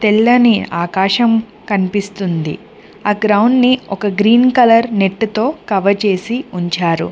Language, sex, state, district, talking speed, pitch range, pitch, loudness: Telugu, female, Telangana, Mahabubabad, 120 wpm, 195-230 Hz, 210 Hz, -14 LUFS